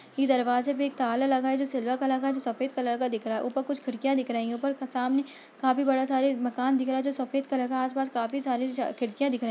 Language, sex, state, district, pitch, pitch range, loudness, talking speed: Hindi, female, Uttar Pradesh, Budaun, 265 Hz, 250-270 Hz, -28 LUFS, 305 wpm